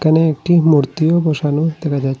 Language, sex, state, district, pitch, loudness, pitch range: Bengali, male, Assam, Hailakandi, 155 Hz, -15 LUFS, 145-160 Hz